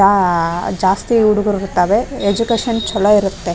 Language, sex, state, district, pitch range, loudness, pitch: Kannada, female, Karnataka, Raichur, 190-225 Hz, -15 LUFS, 200 Hz